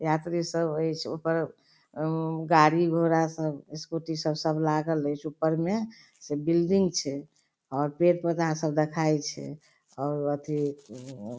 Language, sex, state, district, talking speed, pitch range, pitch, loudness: Maithili, female, Bihar, Darbhanga, 140 wpm, 150-165 Hz, 155 Hz, -27 LUFS